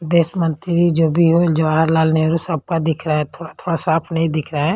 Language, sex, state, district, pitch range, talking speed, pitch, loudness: Hindi, female, Punjab, Pathankot, 160-170 Hz, 215 wpm, 165 Hz, -17 LUFS